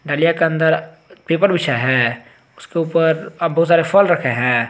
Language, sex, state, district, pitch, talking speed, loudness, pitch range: Hindi, male, Jharkhand, Garhwa, 160 Hz, 180 wpm, -16 LUFS, 125-170 Hz